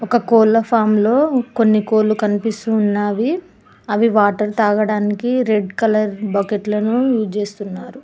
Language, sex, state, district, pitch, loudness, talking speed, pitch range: Telugu, female, Telangana, Mahabubabad, 215 Hz, -17 LUFS, 120 wpm, 210-230 Hz